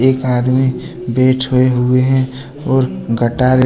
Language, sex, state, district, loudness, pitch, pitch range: Hindi, male, Jharkhand, Deoghar, -15 LUFS, 130 Hz, 125-130 Hz